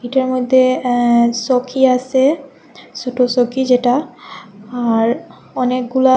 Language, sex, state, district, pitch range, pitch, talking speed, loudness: Bengali, female, Assam, Hailakandi, 245-260 Hz, 250 Hz, 95 wpm, -15 LUFS